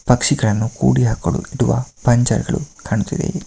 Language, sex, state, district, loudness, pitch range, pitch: Kannada, male, Karnataka, Mysore, -18 LUFS, 95-120 Hz, 115 Hz